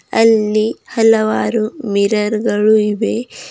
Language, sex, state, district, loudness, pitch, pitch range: Kannada, female, Karnataka, Bidar, -15 LUFS, 215 Hz, 210-225 Hz